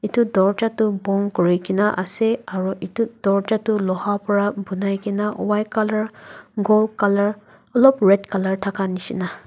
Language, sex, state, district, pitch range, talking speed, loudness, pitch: Nagamese, female, Nagaland, Dimapur, 195-215 Hz, 150 wpm, -20 LUFS, 205 Hz